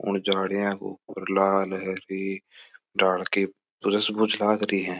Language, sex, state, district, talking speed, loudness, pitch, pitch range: Marwari, male, Rajasthan, Churu, 155 wpm, -25 LUFS, 95 Hz, 95-100 Hz